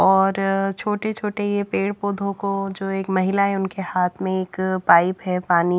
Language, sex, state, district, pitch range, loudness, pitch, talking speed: Hindi, female, Haryana, Jhajjar, 185-200 Hz, -21 LUFS, 195 Hz, 165 wpm